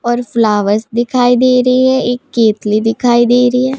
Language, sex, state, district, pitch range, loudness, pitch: Hindi, female, Punjab, Pathankot, 225-250 Hz, -12 LUFS, 245 Hz